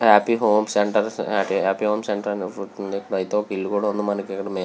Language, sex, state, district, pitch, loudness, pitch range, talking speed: Telugu, male, Andhra Pradesh, Visakhapatnam, 100 Hz, -22 LUFS, 100-105 Hz, 140 wpm